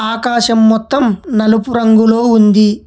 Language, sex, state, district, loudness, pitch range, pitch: Telugu, male, Telangana, Hyderabad, -11 LUFS, 220-235 Hz, 225 Hz